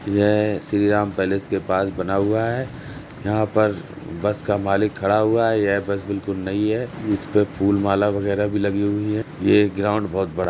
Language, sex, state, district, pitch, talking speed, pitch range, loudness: Hindi, male, Uttar Pradesh, Jalaun, 105 Hz, 195 wpm, 100-105 Hz, -21 LUFS